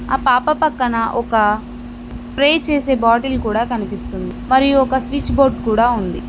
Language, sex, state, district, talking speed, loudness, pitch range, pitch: Telugu, female, Telangana, Mahabubabad, 145 wpm, -16 LUFS, 220-270 Hz, 245 Hz